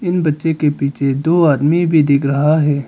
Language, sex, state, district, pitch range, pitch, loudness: Hindi, male, Arunachal Pradesh, Papum Pare, 140-160 Hz, 150 Hz, -15 LUFS